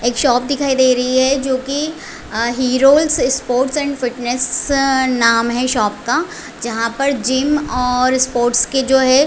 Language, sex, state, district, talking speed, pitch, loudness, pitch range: Hindi, female, Chhattisgarh, Raigarh, 155 wpm, 260 Hz, -15 LUFS, 245-275 Hz